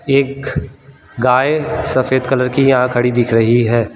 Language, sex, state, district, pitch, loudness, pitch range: Hindi, male, Gujarat, Valsad, 130 Hz, -14 LUFS, 120-140 Hz